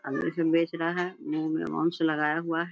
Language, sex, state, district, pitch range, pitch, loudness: Hindi, female, Bihar, Bhagalpur, 165-180 Hz, 165 Hz, -28 LUFS